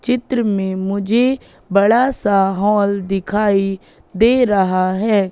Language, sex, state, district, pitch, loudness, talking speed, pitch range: Hindi, female, Madhya Pradesh, Katni, 200 Hz, -16 LUFS, 115 wpm, 195-230 Hz